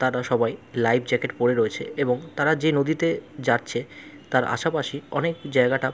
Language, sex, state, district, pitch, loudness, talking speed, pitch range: Bengali, male, West Bengal, Jalpaiguri, 140 Hz, -24 LUFS, 160 wpm, 125-155 Hz